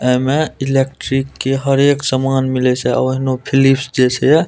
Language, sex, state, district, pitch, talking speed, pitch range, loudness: Maithili, male, Bihar, Purnia, 135 Hz, 200 wpm, 130-135 Hz, -15 LUFS